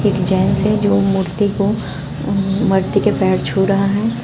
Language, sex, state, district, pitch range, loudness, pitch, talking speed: Hindi, female, Uttar Pradesh, Shamli, 190-205 Hz, -16 LUFS, 195 Hz, 170 wpm